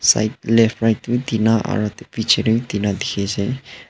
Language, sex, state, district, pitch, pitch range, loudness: Nagamese, male, Nagaland, Dimapur, 115 Hz, 105-120 Hz, -19 LUFS